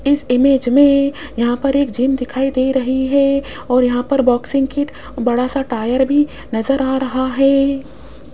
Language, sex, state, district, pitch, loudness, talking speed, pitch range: Hindi, female, Rajasthan, Jaipur, 270 Hz, -16 LUFS, 170 wpm, 255-275 Hz